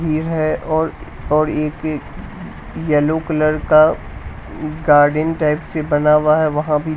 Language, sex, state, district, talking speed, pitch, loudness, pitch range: Hindi, male, Bihar, West Champaran, 145 wpm, 155 Hz, -16 LUFS, 150-155 Hz